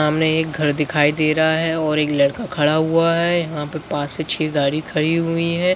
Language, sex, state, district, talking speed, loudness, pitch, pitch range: Hindi, male, Bihar, Begusarai, 230 wpm, -18 LUFS, 155 Hz, 150-165 Hz